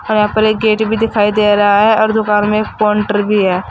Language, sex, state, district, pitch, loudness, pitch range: Hindi, female, Uttar Pradesh, Saharanpur, 210 Hz, -13 LUFS, 205-215 Hz